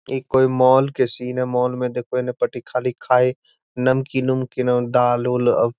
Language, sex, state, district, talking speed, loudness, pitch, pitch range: Magahi, male, Bihar, Gaya, 195 wpm, -20 LUFS, 125 Hz, 125-130 Hz